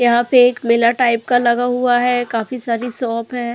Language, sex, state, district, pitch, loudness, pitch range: Hindi, female, Goa, North and South Goa, 245 Hz, -16 LUFS, 235-245 Hz